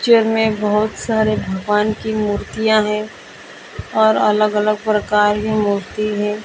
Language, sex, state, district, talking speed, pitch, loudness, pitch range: Hindi, female, Maharashtra, Mumbai Suburban, 140 wpm, 215 Hz, -17 LUFS, 210-220 Hz